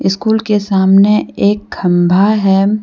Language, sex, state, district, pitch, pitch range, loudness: Hindi, female, Jharkhand, Deoghar, 200 Hz, 190-210 Hz, -12 LUFS